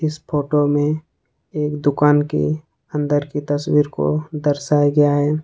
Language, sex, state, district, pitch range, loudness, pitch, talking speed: Hindi, male, Jharkhand, Ranchi, 145-150 Hz, -19 LUFS, 150 Hz, 145 wpm